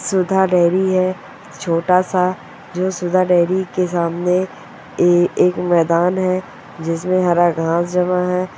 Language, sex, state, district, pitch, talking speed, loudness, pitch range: Hindi, male, Bihar, Sitamarhi, 180 Hz, 125 wpm, -17 LUFS, 175-185 Hz